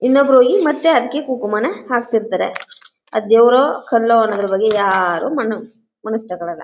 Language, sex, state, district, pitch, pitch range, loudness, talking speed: Kannada, female, Karnataka, Chamarajanagar, 225 Hz, 210-250 Hz, -16 LUFS, 145 wpm